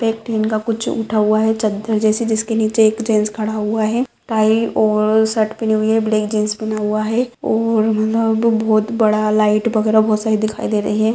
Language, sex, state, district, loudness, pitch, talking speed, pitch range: Hindi, female, Rajasthan, Nagaur, -17 LUFS, 220 Hz, 205 wpm, 215-225 Hz